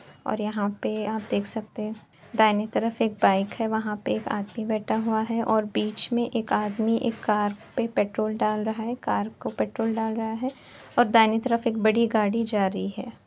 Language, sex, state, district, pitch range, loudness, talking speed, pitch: Hindi, female, Uttar Pradesh, Etah, 210-230 Hz, -26 LUFS, 210 wpm, 220 Hz